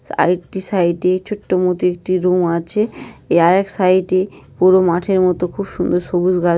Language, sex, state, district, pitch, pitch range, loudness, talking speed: Bengali, female, West Bengal, North 24 Parganas, 180 Hz, 175-190 Hz, -16 LUFS, 165 wpm